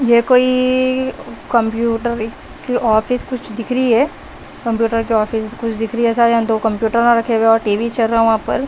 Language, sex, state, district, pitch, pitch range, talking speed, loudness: Hindi, female, Bihar, West Champaran, 230 Hz, 225-240 Hz, 200 wpm, -16 LUFS